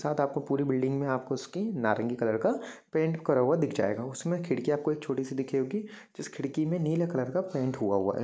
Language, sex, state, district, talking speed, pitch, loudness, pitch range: Hindi, male, Jharkhand, Jamtara, 255 wpm, 140 Hz, -30 LUFS, 130-160 Hz